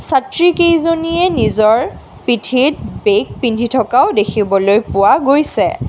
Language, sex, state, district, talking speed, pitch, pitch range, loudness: Assamese, female, Assam, Kamrup Metropolitan, 100 wpm, 260 Hz, 215-330 Hz, -13 LUFS